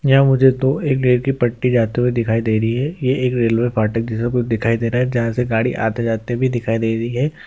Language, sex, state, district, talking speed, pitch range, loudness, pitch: Hindi, male, Bihar, Gaya, 255 wpm, 115-130 Hz, -18 LUFS, 120 Hz